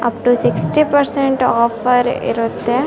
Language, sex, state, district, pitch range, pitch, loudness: Kannada, female, Karnataka, Bellary, 235-270 Hz, 245 Hz, -15 LUFS